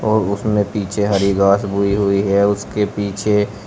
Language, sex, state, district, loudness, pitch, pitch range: Hindi, male, Uttar Pradesh, Shamli, -17 LUFS, 100 Hz, 100-105 Hz